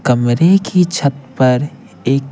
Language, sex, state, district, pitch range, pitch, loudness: Hindi, male, Bihar, Patna, 130-170 Hz, 140 Hz, -14 LUFS